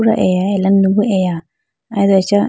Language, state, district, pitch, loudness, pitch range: Idu Mishmi, Arunachal Pradesh, Lower Dibang Valley, 195 Hz, -14 LUFS, 185-205 Hz